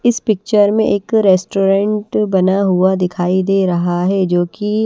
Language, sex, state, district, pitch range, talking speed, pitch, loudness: Hindi, female, Haryana, Charkhi Dadri, 185-210 Hz, 160 wpm, 195 Hz, -14 LUFS